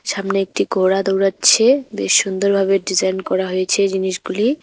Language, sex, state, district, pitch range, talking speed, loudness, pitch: Bengali, female, West Bengal, Cooch Behar, 190-200 Hz, 130 wpm, -17 LUFS, 195 Hz